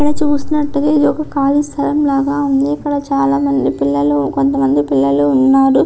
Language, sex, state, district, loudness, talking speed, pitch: Telugu, female, Andhra Pradesh, Visakhapatnam, -14 LUFS, 145 wpm, 275 Hz